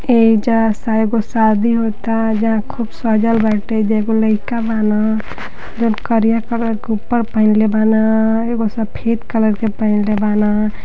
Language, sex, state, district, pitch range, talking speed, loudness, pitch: Bhojpuri, female, Uttar Pradesh, Deoria, 215-225 Hz, 155 wpm, -16 LUFS, 220 Hz